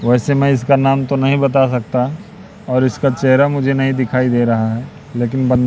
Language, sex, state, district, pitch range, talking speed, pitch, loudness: Hindi, male, Madhya Pradesh, Katni, 125-140 Hz, 200 wpm, 135 Hz, -15 LUFS